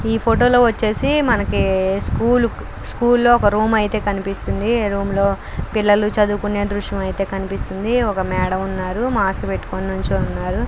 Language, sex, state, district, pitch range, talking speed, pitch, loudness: Telugu, female, Andhra Pradesh, Krishna, 195-230 Hz, 140 wpm, 205 Hz, -18 LUFS